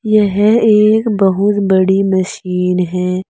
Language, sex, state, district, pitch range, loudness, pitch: Hindi, female, Uttar Pradesh, Saharanpur, 185-210 Hz, -13 LUFS, 195 Hz